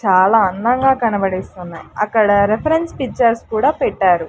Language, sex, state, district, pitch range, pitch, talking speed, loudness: Telugu, female, Andhra Pradesh, Sri Satya Sai, 190-235 Hz, 210 Hz, 110 wpm, -16 LUFS